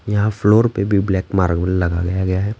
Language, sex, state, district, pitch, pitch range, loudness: Hindi, male, Bihar, Patna, 95 Hz, 95-105 Hz, -17 LUFS